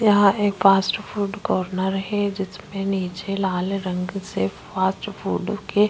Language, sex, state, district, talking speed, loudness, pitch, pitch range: Hindi, female, Chhattisgarh, Korba, 140 wpm, -23 LUFS, 195 Hz, 190-205 Hz